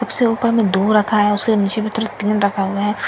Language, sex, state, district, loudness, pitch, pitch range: Hindi, female, Bihar, Katihar, -17 LUFS, 215 Hz, 205-225 Hz